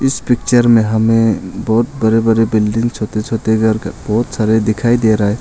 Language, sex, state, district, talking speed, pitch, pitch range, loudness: Hindi, male, Arunachal Pradesh, Longding, 200 wpm, 110 Hz, 110-115 Hz, -14 LUFS